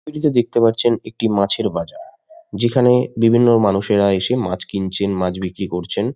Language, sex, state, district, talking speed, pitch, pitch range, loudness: Bengali, male, West Bengal, Malda, 145 wpm, 115 Hz, 100-125 Hz, -17 LUFS